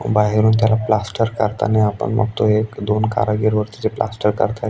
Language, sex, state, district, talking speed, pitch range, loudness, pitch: Marathi, male, Maharashtra, Aurangabad, 165 wpm, 105-110 Hz, -18 LUFS, 110 Hz